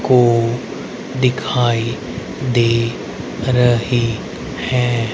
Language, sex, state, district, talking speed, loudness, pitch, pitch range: Hindi, male, Haryana, Rohtak, 60 wpm, -18 LUFS, 120 Hz, 115-125 Hz